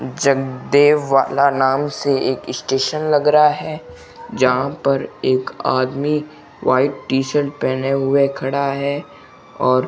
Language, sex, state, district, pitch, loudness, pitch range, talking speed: Hindi, male, Rajasthan, Bikaner, 140 Hz, -18 LUFS, 130-145 Hz, 125 wpm